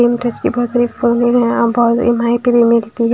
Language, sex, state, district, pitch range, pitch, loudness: Hindi, female, Haryana, Charkhi Dadri, 235-240 Hz, 240 Hz, -14 LUFS